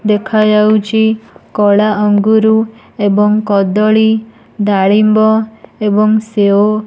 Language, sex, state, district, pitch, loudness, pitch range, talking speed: Odia, female, Odisha, Nuapada, 215 Hz, -11 LUFS, 205-220 Hz, 70 wpm